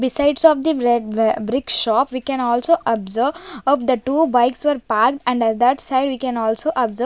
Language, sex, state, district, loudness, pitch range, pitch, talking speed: English, female, Punjab, Kapurthala, -18 LUFS, 235-285 Hz, 255 Hz, 195 wpm